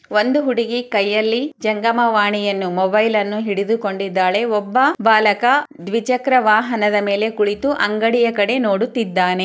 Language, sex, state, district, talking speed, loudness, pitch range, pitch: Kannada, female, Karnataka, Chamarajanagar, 110 wpm, -17 LUFS, 205-235 Hz, 215 Hz